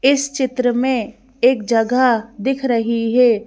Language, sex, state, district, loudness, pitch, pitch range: Hindi, female, Madhya Pradesh, Bhopal, -17 LUFS, 245 Hz, 230-260 Hz